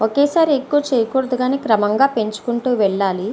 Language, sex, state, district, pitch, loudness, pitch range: Telugu, female, Andhra Pradesh, Visakhapatnam, 245 Hz, -17 LUFS, 215-275 Hz